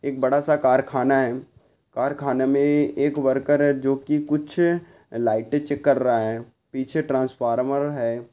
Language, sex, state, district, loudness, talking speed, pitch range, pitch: Hindi, male, Maharashtra, Sindhudurg, -22 LUFS, 145 wpm, 130-145 Hz, 135 Hz